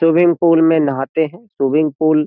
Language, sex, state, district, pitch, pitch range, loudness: Hindi, male, Uttar Pradesh, Jyotiba Phule Nagar, 160 Hz, 150-165 Hz, -15 LUFS